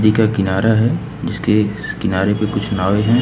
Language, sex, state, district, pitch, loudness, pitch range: Hindi, male, Uttar Pradesh, Lucknow, 105 Hz, -17 LUFS, 100-110 Hz